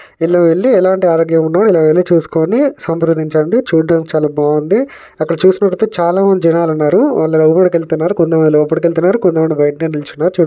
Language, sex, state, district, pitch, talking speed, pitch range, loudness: Telugu, male, Telangana, Nalgonda, 165 Hz, 155 wpm, 160-180 Hz, -12 LUFS